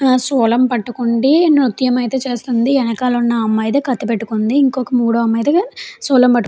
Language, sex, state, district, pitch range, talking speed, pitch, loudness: Telugu, female, Andhra Pradesh, Chittoor, 235-270 Hz, 165 wpm, 250 Hz, -15 LUFS